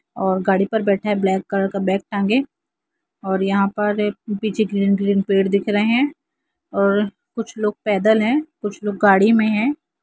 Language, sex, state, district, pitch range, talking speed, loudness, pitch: Hindi, female, Jharkhand, Jamtara, 200-225 Hz, 180 wpm, -19 LUFS, 210 Hz